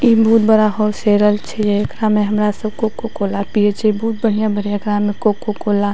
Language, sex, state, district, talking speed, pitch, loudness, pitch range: Maithili, female, Bihar, Madhepura, 200 wpm, 210 Hz, -16 LUFS, 205-220 Hz